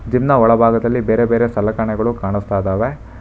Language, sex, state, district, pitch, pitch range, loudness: Kannada, male, Karnataka, Bangalore, 115 Hz, 105-120 Hz, -16 LUFS